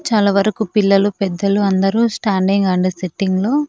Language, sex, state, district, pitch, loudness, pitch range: Telugu, female, Andhra Pradesh, Annamaya, 200 Hz, -16 LUFS, 195-215 Hz